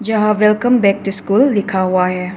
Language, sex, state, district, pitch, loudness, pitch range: Hindi, female, Arunachal Pradesh, Papum Pare, 200 Hz, -14 LUFS, 190-215 Hz